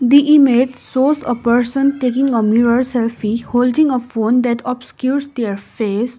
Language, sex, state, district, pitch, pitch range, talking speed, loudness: English, female, Sikkim, Gangtok, 245 Hz, 235-265 Hz, 155 wpm, -15 LUFS